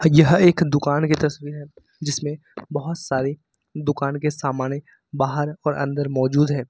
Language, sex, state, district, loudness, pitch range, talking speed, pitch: Hindi, male, Uttar Pradesh, Lucknow, -21 LUFS, 140-155 Hz, 150 wpm, 145 Hz